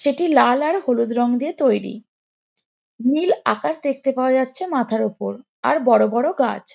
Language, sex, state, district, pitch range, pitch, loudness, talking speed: Bengali, female, West Bengal, Jalpaiguri, 240-290 Hz, 260 Hz, -19 LUFS, 170 wpm